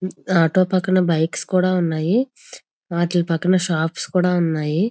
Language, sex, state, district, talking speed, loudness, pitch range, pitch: Telugu, female, Andhra Pradesh, Visakhapatnam, 120 wpm, -19 LUFS, 165-185 Hz, 180 Hz